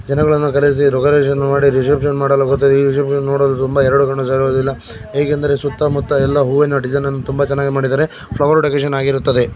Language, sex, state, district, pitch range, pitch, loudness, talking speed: Kannada, male, Karnataka, Shimoga, 135-145 Hz, 140 Hz, -15 LUFS, 155 wpm